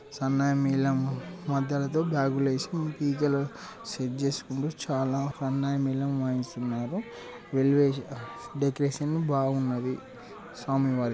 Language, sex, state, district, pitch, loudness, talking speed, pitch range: Telugu, male, Telangana, Karimnagar, 140 Hz, -29 LUFS, 95 wpm, 135-145 Hz